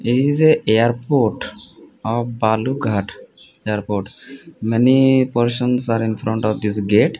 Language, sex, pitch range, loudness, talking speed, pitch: English, male, 110-130 Hz, -18 LUFS, 100 wpm, 115 Hz